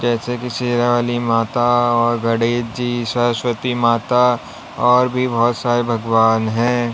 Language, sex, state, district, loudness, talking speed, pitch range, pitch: Hindi, male, Uttar Pradesh, Lalitpur, -17 LUFS, 130 wpm, 115-120 Hz, 120 Hz